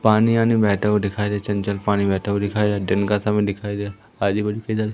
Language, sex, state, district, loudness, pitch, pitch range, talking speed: Hindi, female, Madhya Pradesh, Umaria, -21 LUFS, 105 Hz, 100-105 Hz, 255 wpm